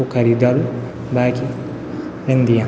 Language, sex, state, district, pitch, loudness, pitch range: Garhwali, male, Uttarakhand, Tehri Garhwal, 125 Hz, -19 LUFS, 120-130 Hz